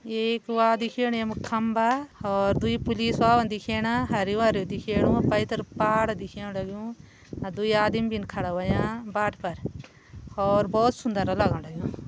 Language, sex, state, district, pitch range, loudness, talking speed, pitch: Garhwali, female, Uttarakhand, Uttarkashi, 200-230 Hz, -26 LUFS, 145 wpm, 220 Hz